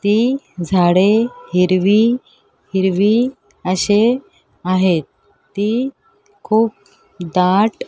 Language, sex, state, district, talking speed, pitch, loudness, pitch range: Marathi, female, Maharashtra, Mumbai Suburban, 75 wpm, 205 Hz, -16 LUFS, 185-235 Hz